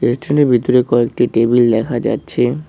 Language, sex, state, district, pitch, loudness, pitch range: Bengali, male, West Bengal, Cooch Behar, 120 Hz, -14 LUFS, 120-130 Hz